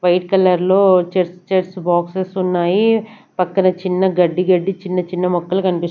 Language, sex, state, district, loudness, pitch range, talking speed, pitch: Telugu, female, Andhra Pradesh, Sri Satya Sai, -16 LUFS, 180-190 Hz, 150 wpm, 185 Hz